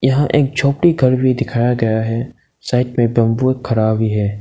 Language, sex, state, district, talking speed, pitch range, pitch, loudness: Hindi, male, Arunachal Pradesh, Lower Dibang Valley, 190 wpm, 115-130 Hz, 125 Hz, -16 LUFS